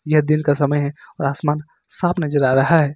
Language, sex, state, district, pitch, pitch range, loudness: Hindi, male, Uttar Pradesh, Lucknow, 150 Hz, 145-155 Hz, -19 LUFS